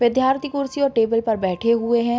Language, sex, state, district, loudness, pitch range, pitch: Hindi, female, Bihar, Sitamarhi, -20 LUFS, 230-265 Hz, 235 Hz